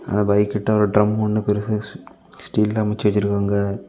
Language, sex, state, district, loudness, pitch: Tamil, male, Tamil Nadu, Kanyakumari, -20 LUFS, 105 Hz